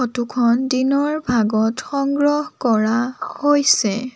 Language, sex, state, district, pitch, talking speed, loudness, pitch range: Assamese, female, Assam, Sonitpur, 255 Hz, 85 wpm, -18 LUFS, 235-285 Hz